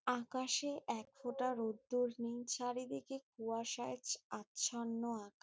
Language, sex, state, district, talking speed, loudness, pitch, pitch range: Bengali, female, West Bengal, Jalpaiguri, 110 wpm, -41 LUFS, 245 Hz, 230-255 Hz